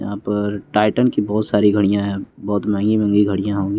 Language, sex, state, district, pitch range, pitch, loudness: Hindi, male, Bihar, West Champaran, 100-105 Hz, 105 Hz, -18 LUFS